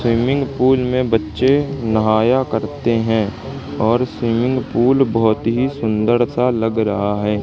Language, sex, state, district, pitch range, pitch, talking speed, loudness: Hindi, male, Madhya Pradesh, Katni, 110-130 Hz, 115 Hz, 135 wpm, -17 LUFS